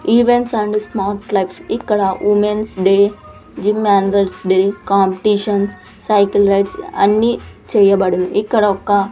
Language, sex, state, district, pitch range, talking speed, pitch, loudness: Telugu, female, Andhra Pradesh, Sri Satya Sai, 195-210 Hz, 120 wpm, 205 Hz, -15 LUFS